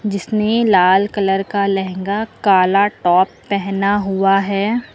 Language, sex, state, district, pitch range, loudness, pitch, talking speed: Hindi, female, Uttar Pradesh, Lucknow, 195-205 Hz, -16 LUFS, 200 Hz, 120 wpm